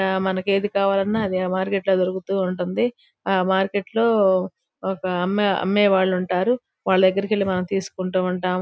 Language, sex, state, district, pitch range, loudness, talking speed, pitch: Telugu, female, Andhra Pradesh, Guntur, 185-200 Hz, -21 LUFS, 145 wpm, 190 Hz